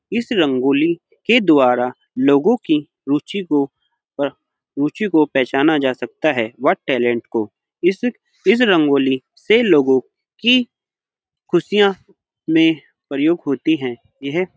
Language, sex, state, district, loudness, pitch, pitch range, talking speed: Hindi, male, Uttar Pradesh, Budaun, -17 LUFS, 145 Hz, 130-190 Hz, 125 wpm